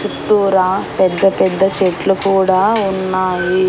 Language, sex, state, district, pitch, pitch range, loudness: Telugu, female, Andhra Pradesh, Annamaya, 190 Hz, 185-195 Hz, -14 LUFS